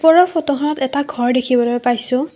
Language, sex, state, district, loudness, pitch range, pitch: Assamese, female, Assam, Kamrup Metropolitan, -16 LUFS, 245-300 Hz, 265 Hz